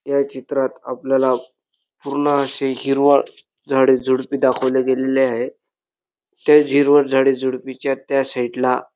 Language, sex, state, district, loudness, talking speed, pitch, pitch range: Marathi, male, Maharashtra, Dhule, -18 LUFS, 120 wpm, 135 Hz, 130-140 Hz